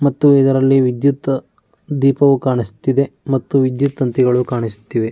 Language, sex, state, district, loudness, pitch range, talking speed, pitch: Kannada, male, Karnataka, Mysore, -16 LUFS, 125-140 Hz, 105 wpm, 135 Hz